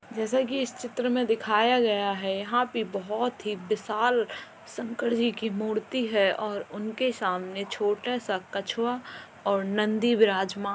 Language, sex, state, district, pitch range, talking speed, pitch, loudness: Hindi, female, Uttar Pradesh, Jalaun, 200-240 Hz, 165 wpm, 220 Hz, -27 LUFS